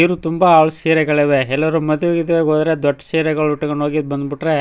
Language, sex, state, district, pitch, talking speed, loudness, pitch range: Kannada, male, Karnataka, Chamarajanagar, 155 Hz, 210 wpm, -16 LUFS, 150-160 Hz